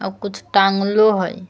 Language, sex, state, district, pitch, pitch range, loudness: Magahi, female, Jharkhand, Palamu, 195 Hz, 190-205 Hz, -17 LUFS